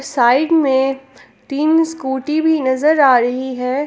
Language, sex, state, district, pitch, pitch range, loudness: Hindi, female, Jharkhand, Palamu, 270 Hz, 260-305 Hz, -15 LUFS